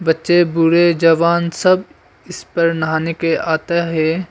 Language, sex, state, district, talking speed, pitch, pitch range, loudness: Hindi, male, Arunachal Pradesh, Longding, 140 wpm, 165 Hz, 160-170 Hz, -15 LUFS